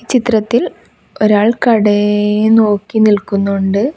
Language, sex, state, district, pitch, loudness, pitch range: Malayalam, female, Kerala, Kasaragod, 210 Hz, -12 LUFS, 205-225 Hz